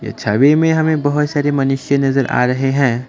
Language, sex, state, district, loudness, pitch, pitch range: Hindi, male, Assam, Kamrup Metropolitan, -15 LUFS, 135 Hz, 130-145 Hz